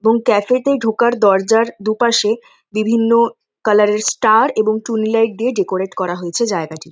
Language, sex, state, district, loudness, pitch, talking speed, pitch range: Bengali, female, West Bengal, North 24 Parganas, -16 LUFS, 220 Hz, 155 wpm, 205-230 Hz